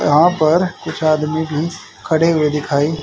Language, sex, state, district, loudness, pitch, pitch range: Hindi, male, Haryana, Jhajjar, -16 LUFS, 155 Hz, 150-165 Hz